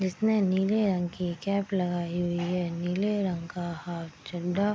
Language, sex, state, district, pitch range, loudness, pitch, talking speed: Hindi, female, Bihar, Gopalganj, 175-195 Hz, -29 LUFS, 180 Hz, 175 wpm